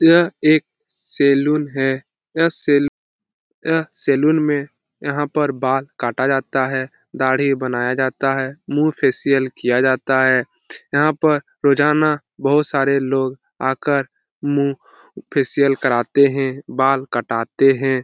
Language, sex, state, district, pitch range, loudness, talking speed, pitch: Hindi, male, Bihar, Lakhisarai, 130-150 Hz, -18 LUFS, 130 wpm, 140 Hz